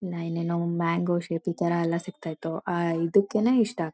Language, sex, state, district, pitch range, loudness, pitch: Kannada, female, Karnataka, Mysore, 170-180 Hz, -27 LUFS, 170 Hz